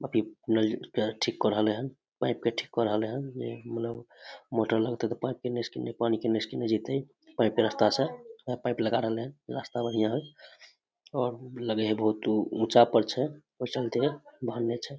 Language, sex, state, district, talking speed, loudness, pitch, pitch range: Maithili, male, Bihar, Samastipur, 180 wpm, -30 LUFS, 115 Hz, 110-125 Hz